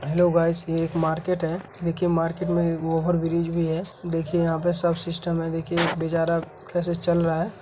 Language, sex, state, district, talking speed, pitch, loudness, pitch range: Hindi, female, Bihar, Gaya, 205 wpm, 170 Hz, -24 LUFS, 165-175 Hz